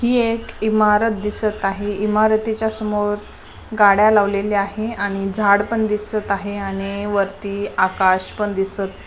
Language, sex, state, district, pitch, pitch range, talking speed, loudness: Marathi, male, Maharashtra, Nagpur, 205 Hz, 200-215 Hz, 130 wpm, -19 LUFS